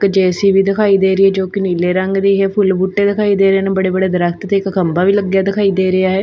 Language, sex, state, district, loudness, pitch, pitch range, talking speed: Punjabi, female, Punjab, Fazilka, -14 LUFS, 195 Hz, 190-195 Hz, 270 wpm